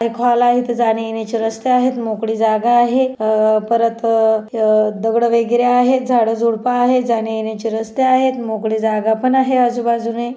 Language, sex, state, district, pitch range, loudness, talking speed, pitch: Marathi, female, Maharashtra, Dhule, 220-245 Hz, -16 LUFS, 155 wpm, 230 Hz